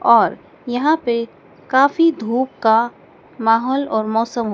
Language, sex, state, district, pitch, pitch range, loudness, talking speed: Hindi, male, Madhya Pradesh, Dhar, 240 Hz, 225-270 Hz, -18 LUFS, 130 wpm